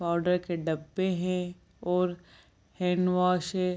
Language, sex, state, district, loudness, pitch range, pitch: Hindi, female, Bihar, Gopalganj, -29 LUFS, 170-180 Hz, 180 Hz